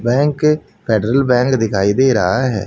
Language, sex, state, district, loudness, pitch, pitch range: Hindi, male, Haryana, Rohtak, -15 LUFS, 125 Hz, 110-135 Hz